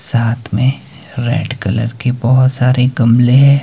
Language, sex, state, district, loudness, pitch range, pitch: Hindi, male, Himachal Pradesh, Shimla, -13 LUFS, 120-130 Hz, 125 Hz